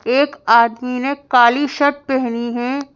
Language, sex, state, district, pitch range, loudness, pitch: Hindi, female, Madhya Pradesh, Bhopal, 240-280 Hz, -16 LUFS, 260 Hz